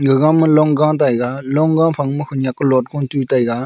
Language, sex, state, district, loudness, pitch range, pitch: Wancho, male, Arunachal Pradesh, Longding, -15 LUFS, 130-155 Hz, 140 Hz